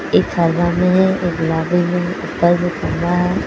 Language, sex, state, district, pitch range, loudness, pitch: Hindi, female, Jharkhand, Garhwa, 170-180 Hz, -17 LUFS, 175 Hz